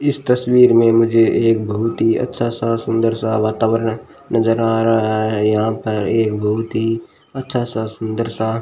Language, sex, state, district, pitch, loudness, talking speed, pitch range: Hindi, male, Rajasthan, Bikaner, 115 Hz, -17 LUFS, 165 wpm, 110-115 Hz